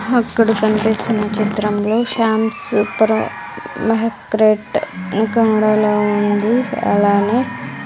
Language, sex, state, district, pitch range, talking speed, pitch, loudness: Telugu, female, Andhra Pradesh, Sri Satya Sai, 210-225 Hz, 70 wpm, 215 Hz, -16 LUFS